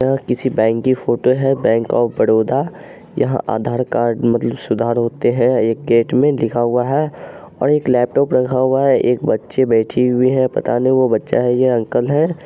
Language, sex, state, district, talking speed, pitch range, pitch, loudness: Angika, male, Bihar, Araria, 195 wpm, 120-135 Hz, 125 Hz, -16 LUFS